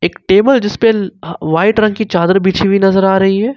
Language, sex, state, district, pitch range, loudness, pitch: Hindi, male, Jharkhand, Ranchi, 190-215 Hz, -12 LUFS, 195 Hz